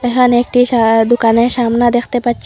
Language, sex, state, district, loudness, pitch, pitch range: Bengali, female, Assam, Hailakandi, -12 LUFS, 240 Hz, 235-245 Hz